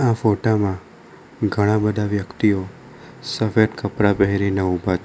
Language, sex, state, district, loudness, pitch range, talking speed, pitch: Gujarati, male, Gujarat, Valsad, -20 LUFS, 100-110 Hz, 120 wpm, 105 Hz